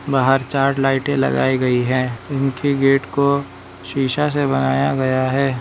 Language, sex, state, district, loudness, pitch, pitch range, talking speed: Hindi, male, Arunachal Pradesh, Lower Dibang Valley, -18 LUFS, 135 Hz, 125-140 Hz, 150 wpm